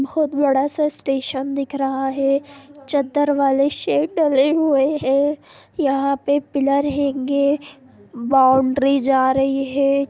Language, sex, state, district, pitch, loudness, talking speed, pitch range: Hindi, female, Bihar, Darbhanga, 275 Hz, -19 LUFS, 130 wpm, 270-285 Hz